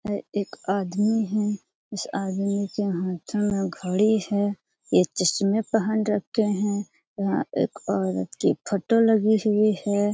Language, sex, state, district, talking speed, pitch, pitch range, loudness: Hindi, female, Bihar, Jamui, 140 wpm, 205 Hz, 195-210 Hz, -24 LUFS